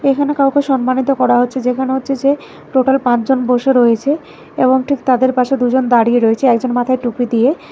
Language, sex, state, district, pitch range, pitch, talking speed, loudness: Bengali, female, Karnataka, Bangalore, 245-270 Hz, 255 Hz, 180 wpm, -14 LUFS